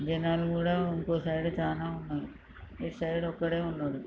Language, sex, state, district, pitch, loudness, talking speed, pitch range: Telugu, male, Andhra Pradesh, Srikakulam, 165 Hz, -32 LUFS, 145 wpm, 160-170 Hz